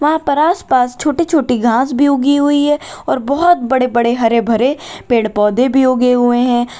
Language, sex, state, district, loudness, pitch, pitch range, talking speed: Hindi, female, Uttar Pradesh, Lalitpur, -13 LUFS, 260 Hz, 240-290 Hz, 195 wpm